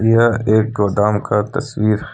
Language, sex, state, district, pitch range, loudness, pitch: Hindi, male, Jharkhand, Deoghar, 105-115 Hz, -16 LUFS, 110 Hz